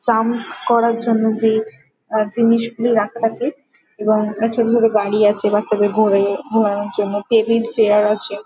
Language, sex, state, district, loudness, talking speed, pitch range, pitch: Bengali, female, West Bengal, Jhargram, -17 LUFS, 155 wpm, 210-230 Hz, 220 Hz